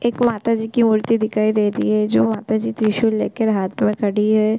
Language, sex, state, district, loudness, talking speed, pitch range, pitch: Hindi, female, Chhattisgarh, Korba, -18 LUFS, 235 wpm, 210-225 Hz, 215 Hz